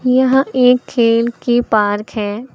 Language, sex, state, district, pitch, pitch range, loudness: Hindi, female, Uttar Pradesh, Lucknow, 240 Hz, 220-255 Hz, -14 LUFS